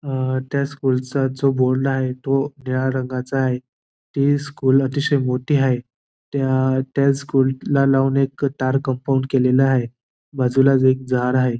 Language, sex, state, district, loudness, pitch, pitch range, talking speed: Marathi, male, Maharashtra, Dhule, -19 LUFS, 130 Hz, 130-135 Hz, 150 wpm